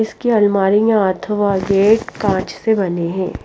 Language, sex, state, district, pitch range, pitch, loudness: Hindi, female, Haryana, Rohtak, 190-220 Hz, 200 Hz, -16 LUFS